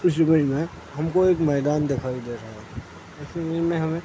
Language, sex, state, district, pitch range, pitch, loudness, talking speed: Hindi, male, Uttarakhand, Uttarkashi, 125-165 Hz, 150 Hz, -23 LUFS, 235 wpm